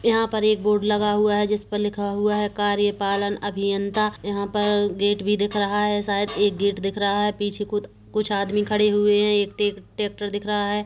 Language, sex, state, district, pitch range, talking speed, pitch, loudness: Hindi, male, Chhattisgarh, Kabirdham, 205-210 Hz, 215 wpm, 205 Hz, -22 LUFS